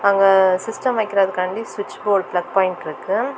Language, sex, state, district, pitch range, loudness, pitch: Tamil, female, Tamil Nadu, Kanyakumari, 185-205 Hz, -19 LUFS, 195 Hz